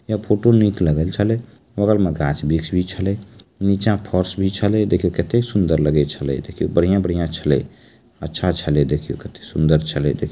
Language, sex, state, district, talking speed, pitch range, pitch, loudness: Maithili, male, Bihar, Supaul, 170 wpm, 80-105 Hz, 90 Hz, -19 LUFS